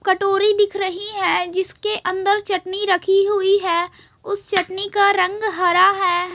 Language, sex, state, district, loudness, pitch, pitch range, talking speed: Hindi, female, Chhattisgarh, Raipur, -18 LUFS, 390 Hz, 370-405 Hz, 150 wpm